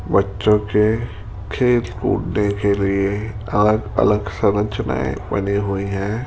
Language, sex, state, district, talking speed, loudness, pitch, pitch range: Hindi, male, Rajasthan, Jaipur, 115 wpm, -19 LUFS, 105 Hz, 100-105 Hz